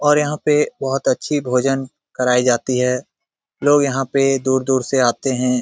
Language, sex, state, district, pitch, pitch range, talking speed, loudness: Hindi, male, Bihar, Jamui, 135 Hz, 125-145 Hz, 170 wpm, -18 LUFS